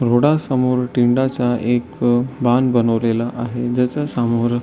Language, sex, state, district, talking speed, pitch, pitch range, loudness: Marathi, male, Maharashtra, Solapur, 115 wpm, 120 Hz, 120-125 Hz, -18 LUFS